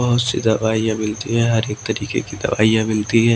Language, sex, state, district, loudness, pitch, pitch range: Hindi, male, Maharashtra, Washim, -19 LUFS, 110 Hz, 110-115 Hz